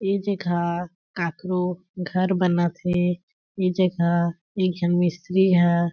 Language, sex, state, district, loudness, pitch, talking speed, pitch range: Chhattisgarhi, female, Chhattisgarh, Jashpur, -23 LUFS, 180 Hz, 120 wpm, 175-185 Hz